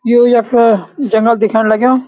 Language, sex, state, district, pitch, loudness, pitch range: Garhwali, male, Uttarakhand, Uttarkashi, 230 Hz, -11 LUFS, 220-245 Hz